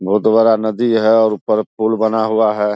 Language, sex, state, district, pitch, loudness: Hindi, male, Bihar, Saharsa, 110 Hz, -14 LUFS